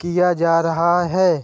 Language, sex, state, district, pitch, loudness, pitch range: Hindi, male, Uttar Pradesh, Budaun, 175 Hz, -17 LUFS, 165-180 Hz